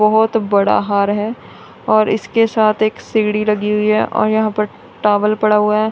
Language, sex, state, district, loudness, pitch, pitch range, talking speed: Hindi, female, Punjab, Kapurthala, -15 LUFS, 215 Hz, 210-215 Hz, 195 wpm